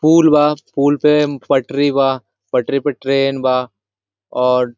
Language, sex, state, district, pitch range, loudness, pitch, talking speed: Hindi, male, Jharkhand, Sahebganj, 125-145 Hz, -15 LUFS, 135 Hz, 140 wpm